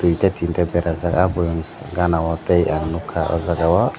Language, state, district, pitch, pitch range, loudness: Kokborok, Tripura, Dhalai, 85 Hz, 80-90 Hz, -20 LUFS